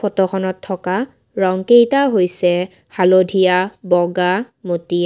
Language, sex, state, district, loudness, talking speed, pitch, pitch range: Assamese, female, Assam, Kamrup Metropolitan, -16 LUFS, 85 wpm, 185 Hz, 180-200 Hz